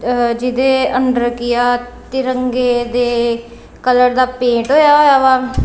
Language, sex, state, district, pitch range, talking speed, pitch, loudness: Punjabi, female, Punjab, Kapurthala, 240-255 Hz, 125 wpm, 250 Hz, -14 LUFS